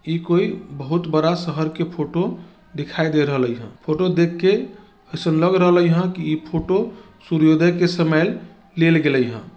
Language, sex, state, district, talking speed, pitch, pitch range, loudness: Bajjika, male, Bihar, Vaishali, 180 wpm, 170 Hz, 155-185 Hz, -19 LUFS